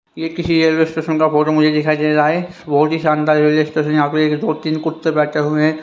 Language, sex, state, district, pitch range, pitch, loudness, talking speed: Hindi, male, Haryana, Rohtak, 150-160 Hz, 155 Hz, -16 LUFS, 255 wpm